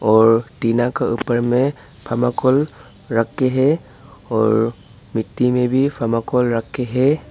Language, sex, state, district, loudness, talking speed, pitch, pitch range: Hindi, male, Arunachal Pradesh, Papum Pare, -18 LUFS, 140 wpm, 120 Hz, 115-130 Hz